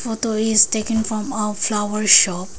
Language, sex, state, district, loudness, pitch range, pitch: English, female, Arunachal Pradesh, Lower Dibang Valley, -17 LUFS, 210-225 Hz, 215 Hz